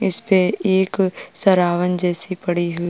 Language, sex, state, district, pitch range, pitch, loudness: Hindi, female, Uttar Pradesh, Jalaun, 175-190 Hz, 180 Hz, -18 LUFS